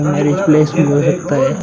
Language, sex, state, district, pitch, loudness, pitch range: Hindi, male, Bihar, Vaishali, 150 Hz, -13 LUFS, 145-155 Hz